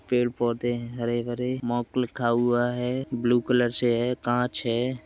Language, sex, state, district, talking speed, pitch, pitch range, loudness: Hindi, male, Uttar Pradesh, Jyotiba Phule Nagar, 140 wpm, 120 Hz, 120-125 Hz, -26 LUFS